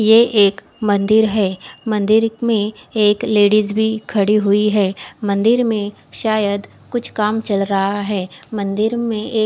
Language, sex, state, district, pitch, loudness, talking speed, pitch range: Hindi, female, Odisha, Khordha, 210 Hz, -17 LUFS, 145 wpm, 205-220 Hz